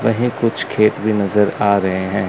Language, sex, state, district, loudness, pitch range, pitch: Hindi, male, Chandigarh, Chandigarh, -17 LUFS, 100-115 Hz, 105 Hz